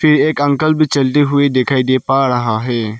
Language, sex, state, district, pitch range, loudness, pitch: Hindi, male, Arunachal Pradesh, Lower Dibang Valley, 130-145 Hz, -14 LUFS, 135 Hz